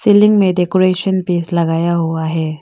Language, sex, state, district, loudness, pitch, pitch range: Hindi, female, Arunachal Pradesh, Longding, -14 LUFS, 175 Hz, 165-185 Hz